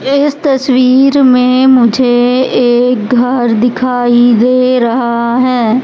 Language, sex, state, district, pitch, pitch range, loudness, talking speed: Hindi, female, Madhya Pradesh, Katni, 250 Hz, 240-255 Hz, -9 LUFS, 105 wpm